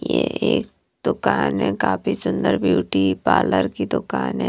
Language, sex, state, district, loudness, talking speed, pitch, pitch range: Hindi, female, Punjab, Kapurthala, -21 LUFS, 145 wpm, 95 Hz, 70-95 Hz